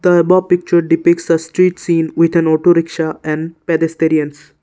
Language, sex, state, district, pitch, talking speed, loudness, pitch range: English, male, Assam, Kamrup Metropolitan, 165 Hz, 170 wpm, -14 LUFS, 160-175 Hz